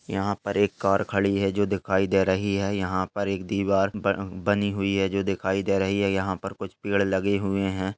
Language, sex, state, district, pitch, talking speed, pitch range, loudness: Hindi, male, Uttar Pradesh, Ghazipur, 100 Hz, 235 wpm, 95-100 Hz, -25 LUFS